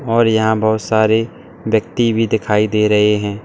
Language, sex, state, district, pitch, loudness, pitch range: Hindi, male, Uttar Pradesh, Saharanpur, 110 Hz, -15 LUFS, 105-115 Hz